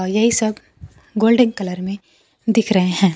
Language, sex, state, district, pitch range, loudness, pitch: Hindi, female, Bihar, Kaimur, 190-225 Hz, -18 LUFS, 210 Hz